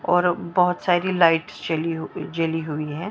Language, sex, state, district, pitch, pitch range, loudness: Hindi, male, Maharashtra, Mumbai Suburban, 170 Hz, 160-180 Hz, -22 LUFS